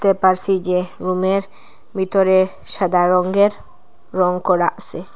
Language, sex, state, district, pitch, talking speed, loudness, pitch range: Bengali, female, Assam, Hailakandi, 185 Hz, 115 wpm, -17 LUFS, 180-195 Hz